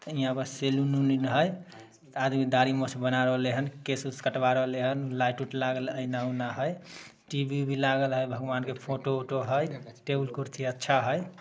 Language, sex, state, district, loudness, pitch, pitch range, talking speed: Maithili, male, Bihar, Samastipur, -29 LUFS, 135 Hz, 130-140 Hz, 175 wpm